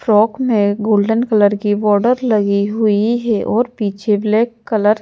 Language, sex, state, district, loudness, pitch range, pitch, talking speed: Hindi, female, Madhya Pradesh, Bhopal, -15 LUFS, 205-230 Hz, 215 Hz, 165 wpm